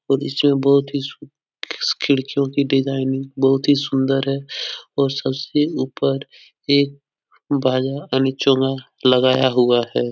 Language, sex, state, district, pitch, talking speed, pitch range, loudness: Hindi, male, Bihar, Supaul, 135 Hz, 135 wpm, 130-140 Hz, -19 LUFS